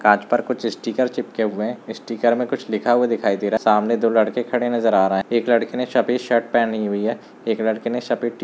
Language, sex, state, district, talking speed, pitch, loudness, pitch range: Hindi, male, Bihar, Gaya, 270 wpm, 115 Hz, -20 LUFS, 110-120 Hz